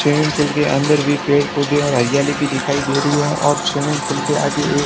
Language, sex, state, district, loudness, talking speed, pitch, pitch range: Hindi, male, Rajasthan, Barmer, -17 LUFS, 245 wpm, 145 Hz, 140-150 Hz